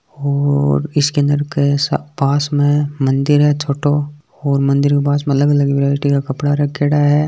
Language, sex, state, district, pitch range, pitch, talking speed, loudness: Marwari, male, Rajasthan, Nagaur, 140-145 Hz, 145 Hz, 180 wpm, -15 LUFS